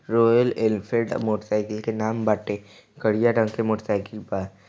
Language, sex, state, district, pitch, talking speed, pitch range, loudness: Bhojpuri, male, Bihar, East Champaran, 110 Hz, 165 wpm, 105-115 Hz, -24 LUFS